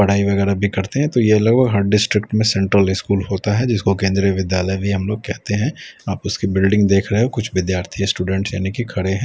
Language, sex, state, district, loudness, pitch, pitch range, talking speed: Hindi, male, Delhi, New Delhi, -18 LUFS, 100 Hz, 95-105 Hz, 235 wpm